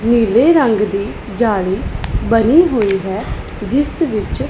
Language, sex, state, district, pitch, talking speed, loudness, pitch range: Punjabi, female, Punjab, Pathankot, 225 Hz, 120 wpm, -15 LUFS, 200-260 Hz